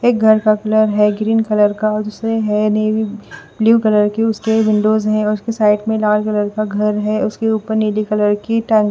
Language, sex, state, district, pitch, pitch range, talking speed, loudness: Hindi, female, Bihar, West Champaran, 215 Hz, 210-220 Hz, 215 wpm, -15 LUFS